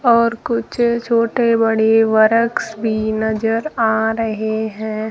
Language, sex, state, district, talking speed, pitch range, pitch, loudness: Hindi, female, Rajasthan, Jaisalmer, 105 wpm, 220-230 Hz, 225 Hz, -17 LUFS